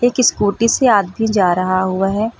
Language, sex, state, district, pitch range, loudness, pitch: Hindi, female, Uttar Pradesh, Lucknow, 185-230 Hz, -15 LUFS, 205 Hz